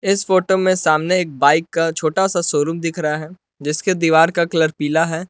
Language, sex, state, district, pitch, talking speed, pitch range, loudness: Hindi, male, Jharkhand, Palamu, 165 Hz, 215 wpm, 155-185 Hz, -17 LUFS